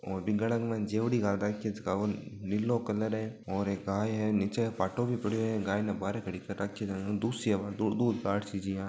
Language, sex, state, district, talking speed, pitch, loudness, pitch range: Marwari, male, Rajasthan, Nagaur, 245 wpm, 105 Hz, -32 LUFS, 100-110 Hz